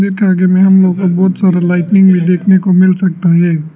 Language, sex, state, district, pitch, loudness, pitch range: Hindi, male, Arunachal Pradesh, Lower Dibang Valley, 185 Hz, -10 LUFS, 180-190 Hz